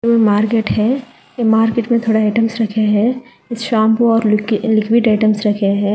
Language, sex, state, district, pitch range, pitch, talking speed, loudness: Hindi, female, Telangana, Hyderabad, 215-235 Hz, 225 Hz, 160 wpm, -15 LUFS